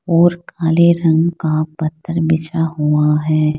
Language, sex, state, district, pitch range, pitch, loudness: Hindi, female, Uttar Pradesh, Saharanpur, 155-170 Hz, 160 Hz, -16 LUFS